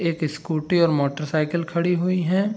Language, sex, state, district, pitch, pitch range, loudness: Hindi, male, Bihar, Saharsa, 170 Hz, 155-175 Hz, -22 LUFS